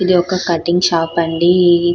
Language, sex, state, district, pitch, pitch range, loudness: Telugu, female, Telangana, Karimnagar, 175 Hz, 170-180 Hz, -14 LUFS